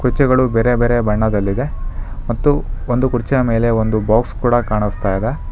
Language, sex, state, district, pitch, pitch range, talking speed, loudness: Kannada, male, Karnataka, Bangalore, 120 Hz, 110-125 Hz, 140 wpm, -17 LUFS